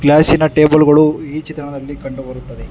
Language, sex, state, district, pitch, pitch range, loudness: Kannada, male, Karnataka, Bangalore, 150 Hz, 135-155 Hz, -11 LUFS